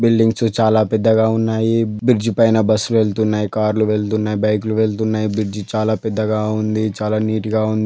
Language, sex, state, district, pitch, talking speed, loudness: Telugu, male, Andhra Pradesh, Guntur, 110 Hz, 160 wpm, -17 LUFS